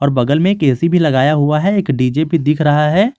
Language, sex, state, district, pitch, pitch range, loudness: Hindi, male, Jharkhand, Garhwa, 150 Hz, 140-170 Hz, -14 LUFS